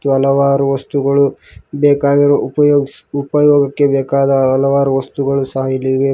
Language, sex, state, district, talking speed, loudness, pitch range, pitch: Kannada, male, Karnataka, Koppal, 100 wpm, -14 LUFS, 135-140 Hz, 140 Hz